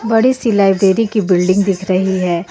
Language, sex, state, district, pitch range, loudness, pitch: Hindi, female, Jharkhand, Ranchi, 185-220 Hz, -14 LUFS, 195 Hz